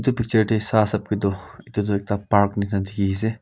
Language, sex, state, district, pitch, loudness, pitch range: Nagamese, male, Nagaland, Kohima, 105 Hz, -22 LUFS, 100-110 Hz